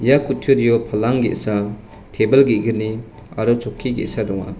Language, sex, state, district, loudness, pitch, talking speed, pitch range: Garo, male, Meghalaya, West Garo Hills, -18 LUFS, 110 Hz, 130 wpm, 105-120 Hz